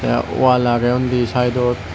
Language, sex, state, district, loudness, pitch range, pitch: Chakma, male, Tripura, West Tripura, -17 LUFS, 120-125 Hz, 125 Hz